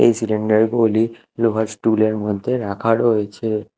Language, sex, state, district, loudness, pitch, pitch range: Bengali, male, Odisha, Malkangiri, -19 LUFS, 110 Hz, 110-115 Hz